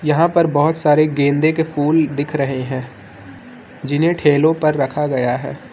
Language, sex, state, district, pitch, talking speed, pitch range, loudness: Hindi, male, Uttar Pradesh, Lucknow, 145 Hz, 170 wpm, 135-155 Hz, -16 LUFS